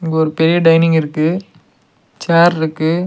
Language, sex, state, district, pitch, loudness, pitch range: Tamil, male, Tamil Nadu, Nilgiris, 165 Hz, -14 LUFS, 160-170 Hz